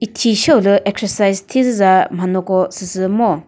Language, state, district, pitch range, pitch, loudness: Chakhesang, Nagaland, Dimapur, 185-225 Hz, 200 Hz, -15 LUFS